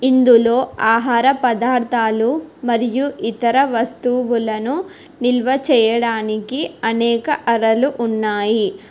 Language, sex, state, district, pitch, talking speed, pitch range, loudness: Telugu, female, Telangana, Hyderabad, 235 Hz, 75 wpm, 225-260 Hz, -17 LUFS